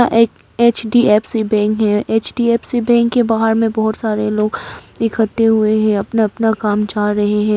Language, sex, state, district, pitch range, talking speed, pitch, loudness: Hindi, female, Arunachal Pradesh, Papum Pare, 210-230 Hz, 165 wpm, 220 Hz, -15 LUFS